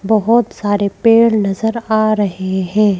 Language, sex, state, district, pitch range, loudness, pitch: Hindi, female, Madhya Pradesh, Bhopal, 200-220 Hz, -14 LUFS, 210 Hz